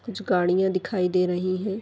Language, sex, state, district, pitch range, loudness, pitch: Hindi, female, Rajasthan, Nagaur, 180-200 Hz, -24 LUFS, 185 Hz